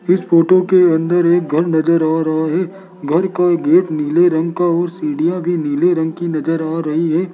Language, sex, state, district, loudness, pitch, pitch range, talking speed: Hindi, male, Rajasthan, Jaipur, -15 LUFS, 170 Hz, 160-175 Hz, 220 wpm